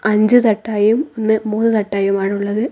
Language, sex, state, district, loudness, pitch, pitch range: Malayalam, female, Kerala, Kozhikode, -16 LUFS, 215 Hz, 205-225 Hz